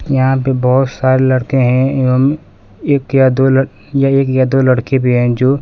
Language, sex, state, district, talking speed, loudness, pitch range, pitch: Hindi, male, Bihar, Kaimur, 190 wpm, -13 LUFS, 130-135 Hz, 130 Hz